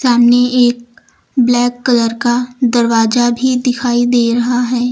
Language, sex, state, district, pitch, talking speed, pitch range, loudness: Hindi, female, Uttar Pradesh, Lucknow, 245 Hz, 135 wpm, 240-245 Hz, -13 LUFS